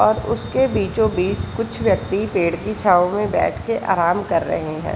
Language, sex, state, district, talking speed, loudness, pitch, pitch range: Hindi, female, Jharkhand, Sahebganj, 180 wpm, -19 LUFS, 205 Hz, 180-215 Hz